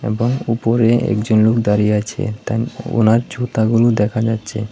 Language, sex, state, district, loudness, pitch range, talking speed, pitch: Bengali, male, Tripura, West Tripura, -17 LUFS, 110-120 Hz, 140 wpm, 115 Hz